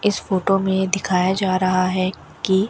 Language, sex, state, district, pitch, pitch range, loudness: Hindi, female, Rajasthan, Bikaner, 190 Hz, 185-195 Hz, -20 LUFS